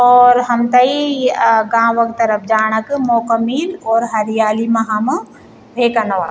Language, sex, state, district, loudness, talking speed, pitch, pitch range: Garhwali, female, Uttarakhand, Tehri Garhwal, -14 LUFS, 150 wpm, 230 Hz, 220-245 Hz